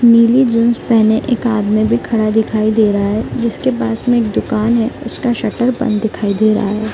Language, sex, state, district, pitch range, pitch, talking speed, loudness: Hindi, female, Bihar, East Champaran, 215-235 Hz, 225 Hz, 205 wpm, -14 LUFS